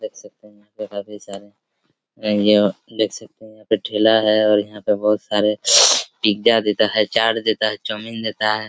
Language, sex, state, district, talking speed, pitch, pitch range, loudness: Hindi, male, Chhattisgarh, Raigarh, 205 wpm, 105 Hz, 105-110 Hz, -18 LUFS